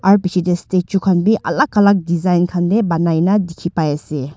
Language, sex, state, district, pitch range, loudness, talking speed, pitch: Nagamese, female, Nagaland, Dimapur, 170-195 Hz, -16 LUFS, 220 wpm, 180 Hz